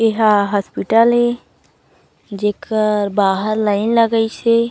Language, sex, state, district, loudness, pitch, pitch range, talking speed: Chhattisgarhi, female, Chhattisgarh, Raigarh, -16 LUFS, 215 Hz, 205-230 Hz, 115 wpm